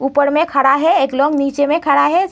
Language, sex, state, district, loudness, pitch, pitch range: Hindi, female, Uttar Pradesh, Muzaffarnagar, -14 LUFS, 285 Hz, 275-315 Hz